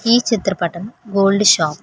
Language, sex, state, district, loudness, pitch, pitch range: Telugu, female, Telangana, Hyderabad, -16 LUFS, 200 Hz, 175-225 Hz